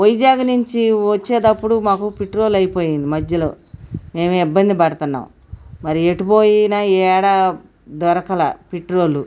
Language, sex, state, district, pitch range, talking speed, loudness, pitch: Telugu, male, Andhra Pradesh, Guntur, 160-210 Hz, 105 wpm, -16 LUFS, 185 Hz